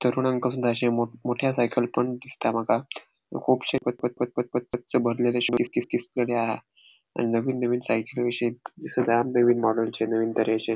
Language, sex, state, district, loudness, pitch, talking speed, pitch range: Konkani, male, Goa, North and South Goa, -25 LUFS, 120 Hz, 165 wpm, 115-125 Hz